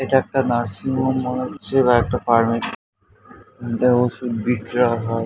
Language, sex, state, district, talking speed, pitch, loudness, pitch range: Bengali, male, West Bengal, North 24 Parganas, 150 wpm, 125 Hz, -20 LUFS, 115-130 Hz